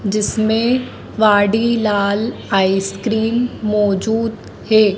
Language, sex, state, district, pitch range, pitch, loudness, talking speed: Hindi, female, Madhya Pradesh, Dhar, 205-225 Hz, 215 Hz, -17 LUFS, 60 wpm